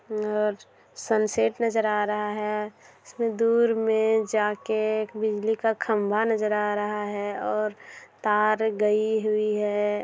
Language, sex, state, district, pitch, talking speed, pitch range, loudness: Hindi, female, Bihar, Darbhanga, 215 Hz, 145 wpm, 210-220 Hz, -25 LUFS